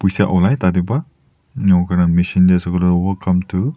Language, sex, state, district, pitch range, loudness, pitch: Nagamese, male, Nagaland, Dimapur, 90-95 Hz, -16 LUFS, 90 Hz